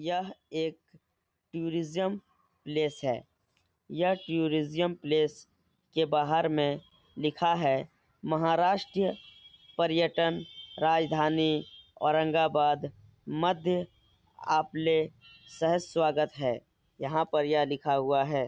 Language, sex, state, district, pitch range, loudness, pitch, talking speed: Hindi, male, Uttar Pradesh, Etah, 150-170 Hz, -29 LUFS, 155 Hz, 95 wpm